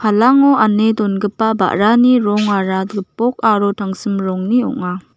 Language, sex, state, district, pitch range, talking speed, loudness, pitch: Garo, female, Meghalaya, West Garo Hills, 195-225 Hz, 115 wpm, -15 LUFS, 210 Hz